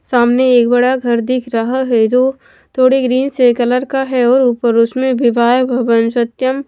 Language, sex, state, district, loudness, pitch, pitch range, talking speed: Hindi, female, Bihar, West Champaran, -13 LUFS, 250 Hz, 240-260 Hz, 180 wpm